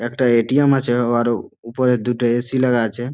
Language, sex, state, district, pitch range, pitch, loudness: Bengali, male, West Bengal, Malda, 120-130 Hz, 120 Hz, -18 LUFS